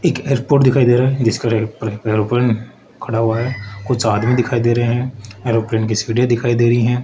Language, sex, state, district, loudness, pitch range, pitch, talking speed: Hindi, male, Rajasthan, Jaipur, -17 LUFS, 110-125 Hz, 120 Hz, 220 wpm